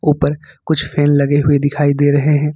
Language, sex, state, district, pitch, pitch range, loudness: Hindi, male, Jharkhand, Ranchi, 145 Hz, 145-150 Hz, -14 LUFS